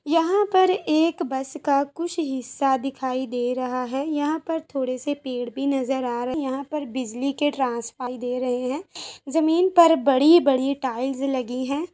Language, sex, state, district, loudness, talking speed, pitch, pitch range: Hindi, female, Uttar Pradesh, Gorakhpur, -23 LUFS, 185 wpm, 275 Hz, 255-315 Hz